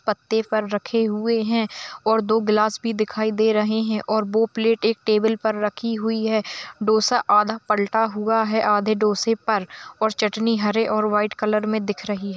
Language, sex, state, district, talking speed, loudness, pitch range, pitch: Hindi, female, Bihar, Kishanganj, 195 wpm, -21 LUFS, 210-225 Hz, 220 Hz